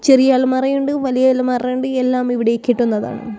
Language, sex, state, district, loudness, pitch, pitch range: Malayalam, female, Kerala, Kozhikode, -16 LUFS, 255 Hz, 245-260 Hz